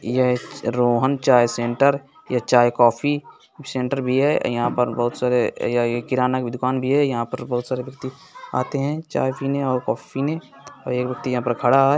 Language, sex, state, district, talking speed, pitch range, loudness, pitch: Hindi, male, Bihar, Gopalganj, 195 wpm, 120-140 Hz, -21 LUFS, 130 Hz